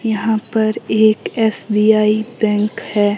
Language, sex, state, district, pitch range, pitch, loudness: Hindi, female, Himachal Pradesh, Shimla, 215-220 Hz, 220 Hz, -16 LUFS